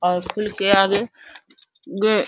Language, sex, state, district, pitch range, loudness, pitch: Hindi, female, Uttar Pradesh, Deoria, 195-215 Hz, -19 LUFS, 200 Hz